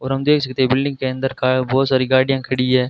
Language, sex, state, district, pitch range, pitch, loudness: Hindi, male, Rajasthan, Bikaner, 130-135 Hz, 130 Hz, -18 LUFS